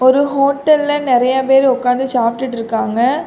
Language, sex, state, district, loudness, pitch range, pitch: Tamil, female, Tamil Nadu, Kanyakumari, -14 LUFS, 245-280 Hz, 260 Hz